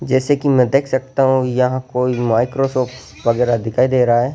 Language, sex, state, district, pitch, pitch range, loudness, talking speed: Hindi, male, Madhya Pradesh, Bhopal, 130 Hz, 125-130 Hz, -17 LUFS, 195 wpm